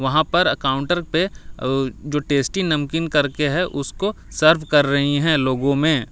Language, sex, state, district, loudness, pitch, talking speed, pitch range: Hindi, male, Delhi, New Delhi, -20 LUFS, 145 Hz, 165 wpm, 140-160 Hz